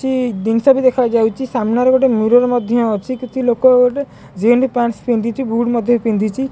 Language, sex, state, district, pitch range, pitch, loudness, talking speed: Odia, male, Odisha, Khordha, 230-255 Hz, 240 Hz, -15 LUFS, 155 wpm